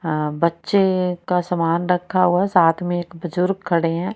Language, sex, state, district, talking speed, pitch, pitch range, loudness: Hindi, female, Haryana, Rohtak, 185 wpm, 175 Hz, 170-180 Hz, -20 LUFS